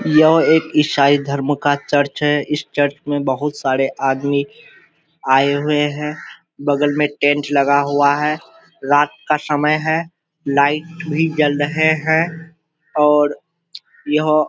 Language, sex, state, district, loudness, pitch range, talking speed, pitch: Hindi, male, Bihar, Kishanganj, -17 LUFS, 145-155 Hz, 140 wpm, 150 Hz